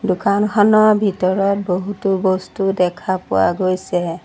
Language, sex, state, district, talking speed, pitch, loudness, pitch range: Assamese, female, Assam, Sonitpur, 100 wpm, 190 Hz, -17 LUFS, 180-200 Hz